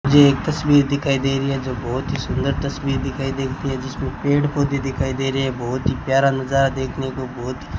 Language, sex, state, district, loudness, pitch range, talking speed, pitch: Hindi, male, Rajasthan, Bikaner, -21 LUFS, 130-140 Hz, 230 wpm, 135 Hz